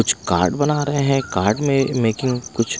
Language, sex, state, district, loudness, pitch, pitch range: Hindi, male, Punjab, Pathankot, -19 LUFS, 135 Hz, 115-140 Hz